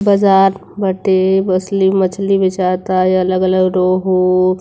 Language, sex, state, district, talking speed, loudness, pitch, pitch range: Hindi, female, Uttar Pradesh, Varanasi, 105 wpm, -14 LUFS, 185 Hz, 185-195 Hz